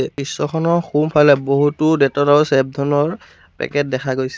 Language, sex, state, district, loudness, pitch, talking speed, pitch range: Assamese, male, Assam, Sonitpur, -16 LUFS, 145 Hz, 95 wpm, 140-150 Hz